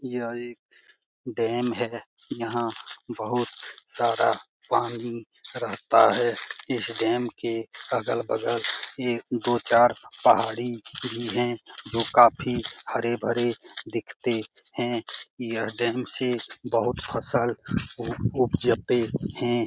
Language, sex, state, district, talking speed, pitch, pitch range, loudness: Hindi, male, Bihar, Jamui, 100 wpm, 120 Hz, 115-120 Hz, -26 LUFS